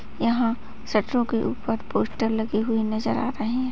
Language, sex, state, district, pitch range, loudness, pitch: Hindi, female, Bihar, Kishanganj, 220-240 Hz, -25 LUFS, 230 Hz